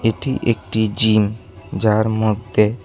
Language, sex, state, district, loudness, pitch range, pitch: Bengali, male, Tripura, West Tripura, -18 LUFS, 105-110 Hz, 110 Hz